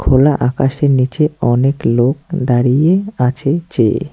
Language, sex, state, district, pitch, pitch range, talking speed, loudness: Bengali, male, West Bengal, Cooch Behar, 135 Hz, 125-150 Hz, 115 wpm, -14 LUFS